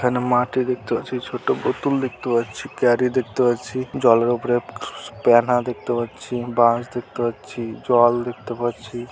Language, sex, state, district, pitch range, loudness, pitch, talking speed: Bengali, male, West Bengal, Malda, 120-125 Hz, -21 LUFS, 120 Hz, 130 wpm